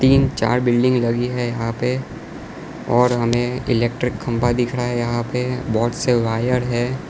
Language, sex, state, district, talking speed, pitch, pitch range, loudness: Hindi, male, Gujarat, Valsad, 170 wpm, 120 Hz, 120-125 Hz, -20 LUFS